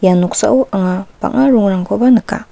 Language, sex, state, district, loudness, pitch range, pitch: Garo, female, Meghalaya, West Garo Hills, -13 LUFS, 185-250 Hz, 200 Hz